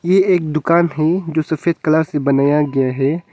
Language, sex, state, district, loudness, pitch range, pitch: Hindi, male, Arunachal Pradesh, Longding, -16 LUFS, 145-170 Hz, 160 Hz